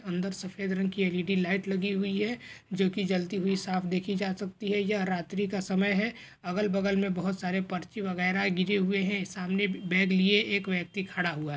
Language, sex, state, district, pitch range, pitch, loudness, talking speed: Hindi, male, Bihar, Lakhisarai, 185-200 Hz, 195 Hz, -29 LUFS, 205 wpm